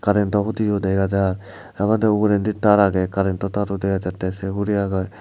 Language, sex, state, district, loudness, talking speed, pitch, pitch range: Chakma, male, Tripura, Dhalai, -20 LUFS, 175 wpm, 100 Hz, 95-105 Hz